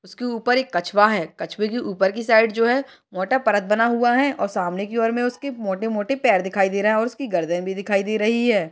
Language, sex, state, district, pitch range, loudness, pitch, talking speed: Hindi, female, Maharashtra, Solapur, 195-240 Hz, -21 LUFS, 215 Hz, 255 wpm